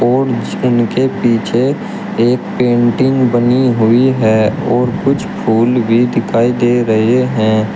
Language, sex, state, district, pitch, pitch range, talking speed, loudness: Hindi, male, Uttar Pradesh, Shamli, 120 Hz, 115-130 Hz, 125 wpm, -13 LUFS